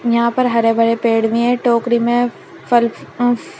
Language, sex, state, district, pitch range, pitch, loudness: Hindi, female, Uttar Pradesh, Shamli, 230-240 Hz, 235 Hz, -16 LUFS